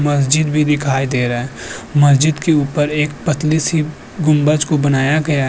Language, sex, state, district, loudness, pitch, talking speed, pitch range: Hindi, male, Uttar Pradesh, Budaun, -15 LUFS, 150 Hz, 185 wpm, 140-155 Hz